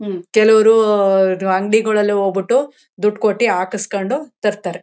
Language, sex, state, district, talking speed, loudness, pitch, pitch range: Kannada, female, Karnataka, Mysore, 100 wpm, -16 LUFS, 210 Hz, 195-220 Hz